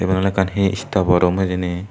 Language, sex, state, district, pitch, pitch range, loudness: Chakma, male, Tripura, Dhalai, 95 Hz, 90-95 Hz, -18 LUFS